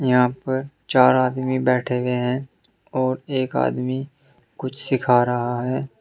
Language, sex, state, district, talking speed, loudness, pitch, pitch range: Hindi, male, Uttar Pradesh, Saharanpur, 140 wpm, -21 LUFS, 130 Hz, 125-130 Hz